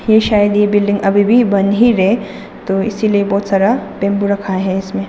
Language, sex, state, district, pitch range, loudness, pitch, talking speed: Hindi, female, Arunachal Pradesh, Papum Pare, 195-210 Hz, -14 LUFS, 200 Hz, 200 wpm